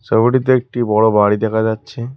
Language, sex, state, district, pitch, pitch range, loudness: Bengali, male, West Bengal, Cooch Behar, 110 Hz, 110-125 Hz, -15 LUFS